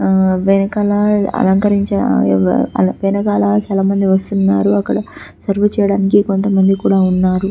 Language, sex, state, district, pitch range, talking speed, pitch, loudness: Telugu, female, Telangana, Karimnagar, 185-200 Hz, 110 wpm, 195 Hz, -14 LUFS